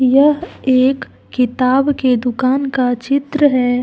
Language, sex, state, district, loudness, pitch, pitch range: Hindi, female, Jharkhand, Deoghar, -15 LUFS, 260 Hz, 250-275 Hz